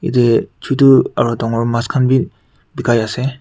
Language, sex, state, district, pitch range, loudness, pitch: Nagamese, male, Nagaland, Kohima, 115-130 Hz, -15 LUFS, 120 Hz